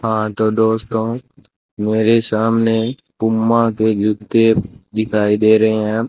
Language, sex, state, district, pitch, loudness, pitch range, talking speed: Hindi, male, Rajasthan, Bikaner, 110 Hz, -16 LUFS, 110-115 Hz, 120 wpm